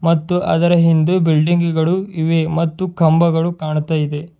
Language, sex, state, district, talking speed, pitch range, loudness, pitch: Kannada, male, Karnataka, Bidar, 135 wpm, 160-175 Hz, -16 LUFS, 165 Hz